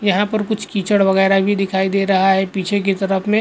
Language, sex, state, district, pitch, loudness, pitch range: Hindi, male, Goa, North and South Goa, 195 Hz, -17 LUFS, 195-205 Hz